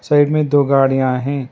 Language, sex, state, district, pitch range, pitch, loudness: Hindi, male, Karnataka, Bangalore, 135-145 Hz, 140 Hz, -15 LUFS